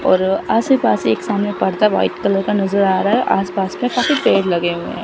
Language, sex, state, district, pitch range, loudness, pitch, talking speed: Hindi, female, Chandigarh, Chandigarh, 190-225 Hz, -16 LUFS, 200 Hz, 250 wpm